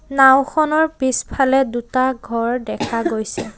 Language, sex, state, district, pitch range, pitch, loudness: Assamese, female, Assam, Sonitpur, 240-275 Hz, 260 Hz, -18 LUFS